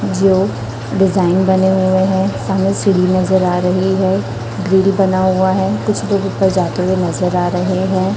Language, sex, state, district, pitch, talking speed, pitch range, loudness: Hindi, female, Chhattisgarh, Raipur, 185 Hz, 175 wpm, 180-190 Hz, -15 LUFS